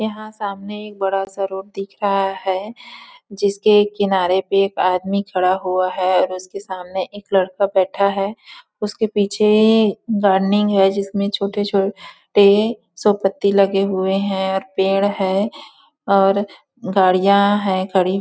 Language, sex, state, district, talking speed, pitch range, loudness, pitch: Hindi, female, Chhattisgarh, Bilaspur, 150 wpm, 190-205 Hz, -18 LUFS, 195 Hz